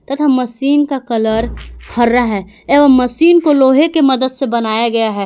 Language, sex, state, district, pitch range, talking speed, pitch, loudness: Hindi, female, Jharkhand, Garhwa, 230-280 Hz, 185 wpm, 255 Hz, -12 LUFS